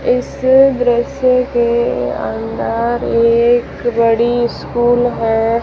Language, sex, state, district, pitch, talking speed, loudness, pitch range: Hindi, female, Rajasthan, Jaisalmer, 240 Hz, 85 wpm, -14 LUFS, 230-245 Hz